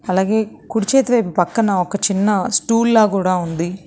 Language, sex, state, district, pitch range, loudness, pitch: Telugu, female, Telangana, Hyderabad, 185-225 Hz, -17 LUFS, 200 Hz